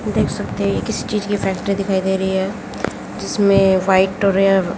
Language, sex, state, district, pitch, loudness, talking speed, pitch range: Hindi, female, Haryana, Jhajjar, 195 Hz, -18 LUFS, 200 wpm, 190-200 Hz